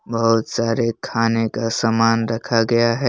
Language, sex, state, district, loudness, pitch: Hindi, male, Jharkhand, Palamu, -19 LUFS, 115 Hz